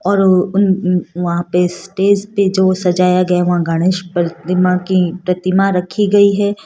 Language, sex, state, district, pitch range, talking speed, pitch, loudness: Hindi, female, Rajasthan, Jaipur, 180-195 Hz, 170 wpm, 185 Hz, -14 LUFS